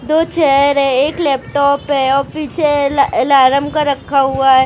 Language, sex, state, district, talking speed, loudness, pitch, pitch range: Hindi, female, Maharashtra, Mumbai Suburban, 180 wpm, -13 LUFS, 280 Hz, 275-295 Hz